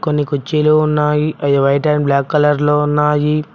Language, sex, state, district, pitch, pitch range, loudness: Telugu, male, Telangana, Mahabubabad, 150 Hz, 145-150 Hz, -14 LUFS